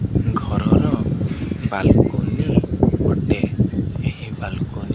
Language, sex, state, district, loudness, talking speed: Odia, male, Odisha, Khordha, -20 LUFS, 75 wpm